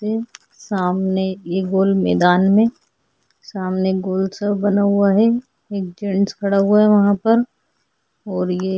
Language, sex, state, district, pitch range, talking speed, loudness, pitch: Hindi, female, Goa, North and South Goa, 190-205 Hz, 145 wpm, -18 LUFS, 195 Hz